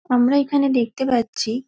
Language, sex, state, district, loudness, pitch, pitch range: Bengali, female, West Bengal, Dakshin Dinajpur, -19 LUFS, 255 Hz, 240-275 Hz